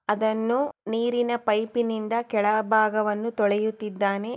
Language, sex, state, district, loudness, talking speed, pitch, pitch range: Kannada, female, Karnataka, Chamarajanagar, -25 LUFS, 70 wpm, 220 Hz, 210-235 Hz